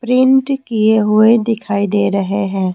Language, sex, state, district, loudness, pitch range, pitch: Hindi, female, Rajasthan, Jaipur, -14 LUFS, 200-235 Hz, 215 Hz